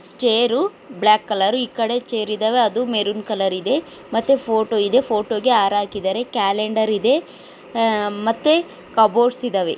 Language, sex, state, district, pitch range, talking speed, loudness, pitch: Kannada, female, Karnataka, Dharwad, 210-245 Hz, 140 wpm, -19 LUFS, 225 Hz